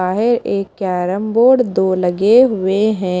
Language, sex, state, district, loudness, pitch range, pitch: Hindi, female, Maharashtra, Mumbai Suburban, -15 LUFS, 185-225 Hz, 195 Hz